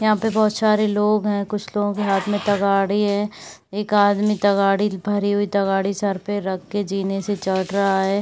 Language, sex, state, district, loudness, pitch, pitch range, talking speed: Hindi, female, Chhattisgarh, Raigarh, -20 LUFS, 205 Hz, 195-210 Hz, 205 wpm